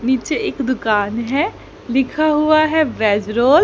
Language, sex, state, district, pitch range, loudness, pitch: Hindi, female, Haryana, Charkhi Dadri, 220-300 Hz, -17 LUFS, 260 Hz